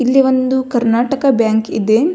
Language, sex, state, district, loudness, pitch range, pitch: Kannada, female, Karnataka, Belgaum, -14 LUFS, 225-265 Hz, 255 Hz